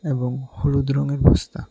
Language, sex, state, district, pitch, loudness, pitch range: Bengali, male, Tripura, West Tripura, 140 Hz, -21 LUFS, 130-140 Hz